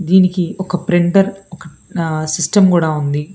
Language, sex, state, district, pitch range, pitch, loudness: Telugu, female, Telangana, Hyderabad, 165-190 Hz, 175 Hz, -15 LUFS